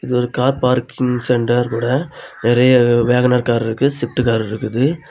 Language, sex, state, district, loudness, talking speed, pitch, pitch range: Tamil, male, Tamil Nadu, Kanyakumari, -16 LUFS, 155 wpm, 125 Hz, 120-125 Hz